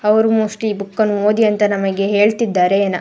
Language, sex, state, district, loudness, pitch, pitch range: Kannada, female, Karnataka, Dakshina Kannada, -16 LUFS, 210 Hz, 200-215 Hz